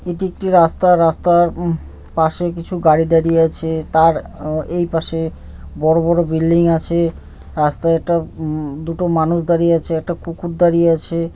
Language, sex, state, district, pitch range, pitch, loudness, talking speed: Bengali, male, West Bengal, North 24 Parganas, 160-170 Hz, 165 Hz, -16 LUFS, 160 wpm